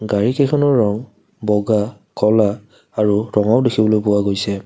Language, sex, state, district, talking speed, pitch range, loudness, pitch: Assamese, male, Assam, Kamrup Metropolitan, 115 wpm, 105-110 Hz, -17 LUFS, 105 Hz